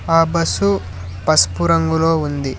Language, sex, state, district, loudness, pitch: Telugu, male, Telangana, Hyderabad, -16 LUFS, 140 Hz